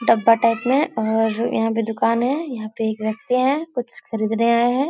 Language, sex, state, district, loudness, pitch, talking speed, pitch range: Hindi, female, Bihar, Supaul, -20 LUFS, 230 Hz, 210 wpm, 225-250 Hz